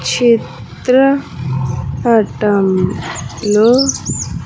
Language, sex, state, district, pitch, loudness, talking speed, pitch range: Telugu, female, Andhra Pradesh, Sri Satya Sai, 210 Hz, -14 LUFS, 55 wpm, 150-240 Hz